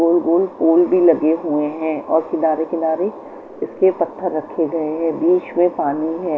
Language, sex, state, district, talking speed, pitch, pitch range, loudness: Hindi, female, Chandigarh, Chandigarh, 180 wpm, 165 Hz, 160-170 Hz, -18 LUFS